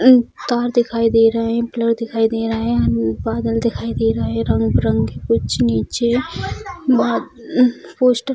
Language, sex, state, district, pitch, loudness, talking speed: Hindi, female, Bihar, Jamui, 225 Hz, -18 LUFS, 160 wpm